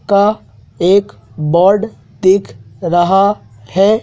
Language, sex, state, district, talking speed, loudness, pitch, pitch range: Hindi, male, Madhya Pradesh, Dhar, 90 wpm, -13 LUFS, 190 Hz, 170-200 Hz